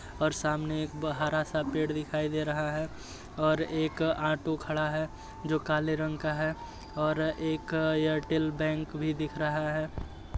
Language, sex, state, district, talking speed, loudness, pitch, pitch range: Hindi, male, Uttar Pradesh, Jyotiba Phule Nagar, 160 wpm, -31 LUFS, 155 Hz, 150-155 Hz